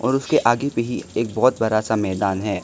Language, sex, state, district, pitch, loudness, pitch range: Hindi, male, Arunachal Pradesh, Lower Dibang Valley, 115 Hz, -20 LUFS, 105-125 Hz